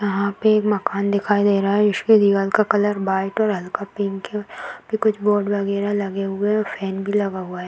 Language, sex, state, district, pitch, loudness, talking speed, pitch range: Hindi, female, Bihar, Darbhanga, 205 Hz, -20 LUFS, 220 wpm, 195-210 Hz